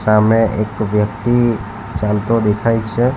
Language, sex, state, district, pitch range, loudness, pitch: Gujarati, male, Gujarat, Valsad, 105-115 Hz, -16 LUFS, 110 Hz